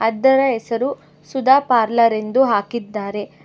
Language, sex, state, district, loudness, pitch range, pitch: Kannada, female, Karnataka, Bangalore, -17 LUFS, 215-265 Hz, 235 Hz